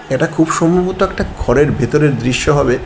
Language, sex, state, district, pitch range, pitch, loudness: Bengali, male, Tripura, West Tripura, 140-180 Hz, 160 Hz, -14 LUFS